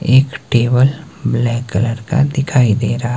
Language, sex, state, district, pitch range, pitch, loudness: Hindi, male, Himachal Pradesh, Shimla, 120-140 Hz, 125 Hz, -15 LUFS